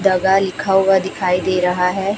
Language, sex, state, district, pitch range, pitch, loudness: Hindi, female, Chhattisgarh, Raipur, 180-195 Hz, 190 Hz, -16 LUFS